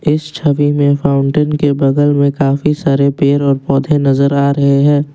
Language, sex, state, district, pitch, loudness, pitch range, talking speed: Hindi, male, Assam, Kamrup Metropolitan, 140 Hz, -12 LUFS, 140-145 Hz, 185 wpm